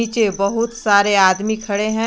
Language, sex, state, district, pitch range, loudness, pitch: Hindi, female, Jharkhand, Garhwa, 200-225 Hz, -17 LUFS, 215 Hz